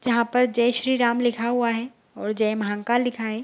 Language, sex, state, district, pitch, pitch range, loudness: Hindi, female, Bihar, Bhagalpur, 235 Hz, 225-245 Hz, -23 LUFS